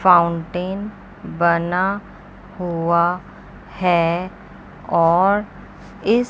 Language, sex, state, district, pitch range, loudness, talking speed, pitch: Hindi, female, Chandigarh, Chandigarh, 170-195 Hz, -19 LUFS, 55 wpm, 180 Hz